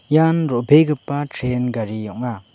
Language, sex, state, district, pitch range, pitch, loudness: Garo, male, Meghalaya, West Garo Hills, 120-150 Hz, 125 Hz, -19 LUFS